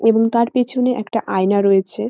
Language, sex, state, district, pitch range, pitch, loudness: Bengali, female, West Bengal, North 24 Parganas, 200-245 Hz, 225 Hz, -17 LUFS